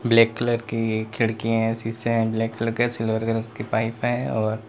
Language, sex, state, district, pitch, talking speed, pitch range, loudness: Hindi, male, Uttar Pradesh, Lalitpur, 115 Hz, 215 wpm, 110-115 Hz, -24 LUFS